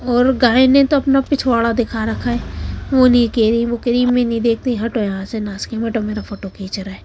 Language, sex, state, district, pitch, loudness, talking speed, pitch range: Hindi, female, Haryana, Charkhi Dadri, 235 Hz, -16 LUFS, 255 wpm, 220-250 Hz